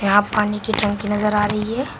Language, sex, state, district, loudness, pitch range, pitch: Hindi, female, Uttar Pradesh, Shamli, -20 LUFS, 205-210 Hz, 210 Hz